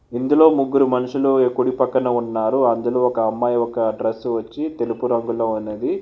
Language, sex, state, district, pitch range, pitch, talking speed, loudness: Telugu, male, Telangana, Hyderabad, 115-130 Hz, 120 Hz, 160 wpm, -19 LUFS